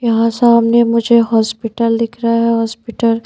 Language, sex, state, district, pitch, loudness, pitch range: Hindi, female, Bihar, Patna, 230 Hz, -13 LUFS, 225-235 Hz